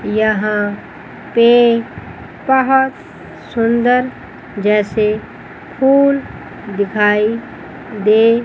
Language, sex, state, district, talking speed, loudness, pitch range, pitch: Hindi, female, Chandigarh, Chandigarh, 55 wpm, -14 LUFS, 210-250 Hz, 230 Hz